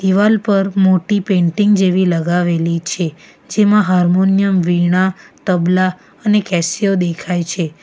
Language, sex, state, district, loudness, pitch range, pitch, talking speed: Gujarati, female, Gujarat, Valsad, -15 LUFS, 175-195 Hz, 185 Hz, 115 wpm